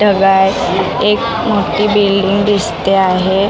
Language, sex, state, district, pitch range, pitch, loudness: Marathi, female, Maharashtra, Mumbai Suburban, 195-210 Hz, 200 Hz, -12 LUFS